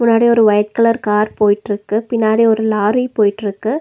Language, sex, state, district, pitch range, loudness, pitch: Tamil, female, Tamil Nadu, Nilgiris, 210-230 Hz, -14 LUFS, 220 Hz